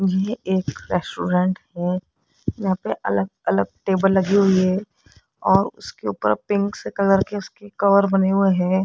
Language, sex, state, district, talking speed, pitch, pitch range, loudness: Hindi, female, Rajasthan, Jaipur, 165 wpm, 190 Hz, 180-200 Hz, -21 LUFS